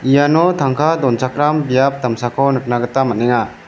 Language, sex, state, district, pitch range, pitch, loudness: Garo, male, Meghalaya, West Garo Hills, 120-145 Hz, 135 Hz, -15 LUFS